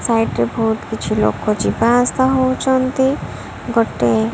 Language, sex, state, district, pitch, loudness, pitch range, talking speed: Odia, female, Odisha, Malkangiri, 230 Hz, -17 LUFS, 210-260 Hz, 140 wpm